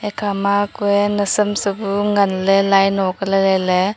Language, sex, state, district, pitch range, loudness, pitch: Wancho, female, Arunachal Pradesh, Longding, 195-205 Hz, -17 LUFS, 200 Hz